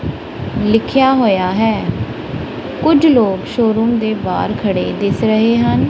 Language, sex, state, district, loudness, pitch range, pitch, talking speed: Punjabi, female, Punjab, Kapurthala, -15 LUFS, 210-235 Hz, 225 Hz, 120 wpm